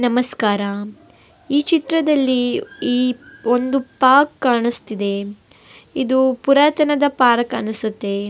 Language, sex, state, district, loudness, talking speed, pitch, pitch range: Kannada, female, Karnataka, Bellary, -18 LUFS, 80 wpm, 250 Hz, 220-275 Hz